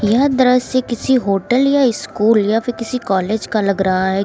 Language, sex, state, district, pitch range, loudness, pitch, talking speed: Hindi, female, Uttar Pradesh, Lucknow, 200-250 Hz, -16 LUFS, 225 Hz, 195 wpm